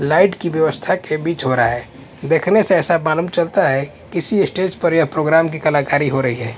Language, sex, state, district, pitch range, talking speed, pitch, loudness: Hindi, male, Punjab, Kapurthala, 140-175 Hz, 210 wpm, 160 Hz, -17 LUFS